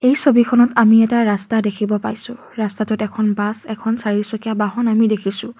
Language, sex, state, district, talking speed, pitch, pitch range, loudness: Assamese, female, Assam, Kamrup Metropolitan, 170 wpm, 220 Hz, 210-235 Hz, -17 LUFS